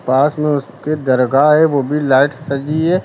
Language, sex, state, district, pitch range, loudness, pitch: Hindi, male, Uttar Pradesh, Lucknow, 135-150 Hz, -15 LUFS, 145 Hz